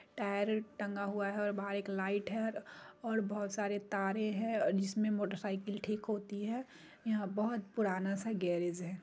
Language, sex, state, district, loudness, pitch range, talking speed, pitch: Hindi, female, Bihar, Muzaffarpur, -37 LUFS, 200-215 Hz, 175 wpm, 205 Hz